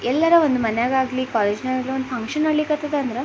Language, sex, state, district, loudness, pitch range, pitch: Kannada, female, Karnataka, Belgaum, -21 LUFS, 245-295 Hz, 260 Hz